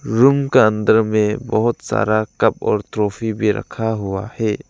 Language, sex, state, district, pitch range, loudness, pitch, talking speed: Hindi, male, Arunachal Pradesh, Lower Dibang Valley, 105-115 Hz, -18 LUFS, 110 Hz, 165 wpm